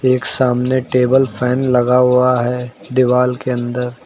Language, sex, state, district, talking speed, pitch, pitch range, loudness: Hindi, male, Uttar Pradesh, Lucknow, 150 wpm, 125 Hz, 125-130 Hz, -15 LUFS